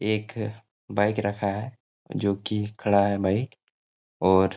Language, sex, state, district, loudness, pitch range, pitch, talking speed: Hindi, male, Jharkhand, Jamtara, -26 LUFS, 100-110 Hz, 105 Hz, 130 wpm